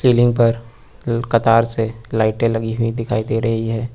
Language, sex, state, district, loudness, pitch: Hindi, male, Uttar Pradesh, Lucknow, -18 LUFS, 115 Hz